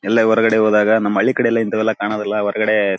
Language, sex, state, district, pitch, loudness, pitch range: Kannada, male, Karnataka, Bellary, 110 Hz, -16 LUFS, 105-110 Hz